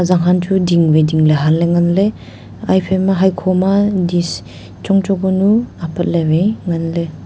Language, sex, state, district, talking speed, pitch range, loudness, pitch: Wancho, female, Arunachal Pradesh, Longding, 150 wpm, 165-190 Hz, -14 LUFS, 175 Hz